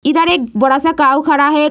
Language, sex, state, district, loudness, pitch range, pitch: Hindi, female, Bihar, Lakhisarai, -12 LUFS, 270-320 Hz, 295 Hz